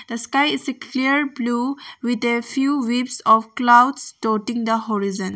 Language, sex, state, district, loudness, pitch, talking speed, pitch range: English, female, Arunachal Pradesh, Longding, -20 LUFS, 240 Hz, 170 wpm, 225-270 Hz